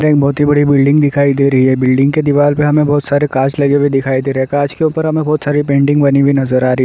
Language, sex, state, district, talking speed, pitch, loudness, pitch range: Hindi, male, Uttar Pradesh, Jalaun, 325 wpm, 145 Hz, -12 LUFS, 135-145 Hz